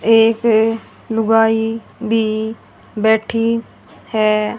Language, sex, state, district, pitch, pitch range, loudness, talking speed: Hindi, female, Haryana, Rohtak, 225 Hz, 220-225 Hz, -16 LUFS, 65 wpm